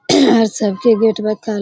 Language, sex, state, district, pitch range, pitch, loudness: Hindi, female, Bihar, Jamui, 215-225 Hz, 215 Hz, -14 LUFS